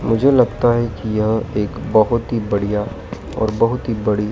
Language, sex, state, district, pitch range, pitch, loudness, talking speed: Hindi, male, Madhya Pradesh, Dhar, 105-120 Hz, 110 Hz, -18 LUFS, 195 wpm